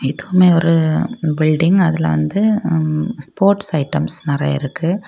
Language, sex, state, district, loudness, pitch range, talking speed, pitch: Tamil, female, Tamil Nadu, Kanyakumari, -16 LUFS, 150-185 Hz, 105 wpm, 160 Hz